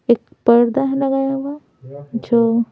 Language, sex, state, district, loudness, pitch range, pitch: Hindi, female, Bihar, Patna, -17 LUFS, 230-270 Hz, 235 Hz